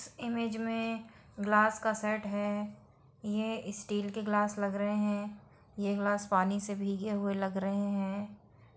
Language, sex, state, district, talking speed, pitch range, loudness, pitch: Hindi, female, Bihar, Saran, 165 wpm, 200-215 Hz, -33 LUFS, 205 Hz